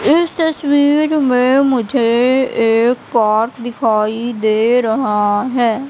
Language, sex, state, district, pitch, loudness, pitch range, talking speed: Hindi, female, Madhya Pradesh, Katni, 245 Hz, -14 LUFS, 225-270 Hz, 100 wpm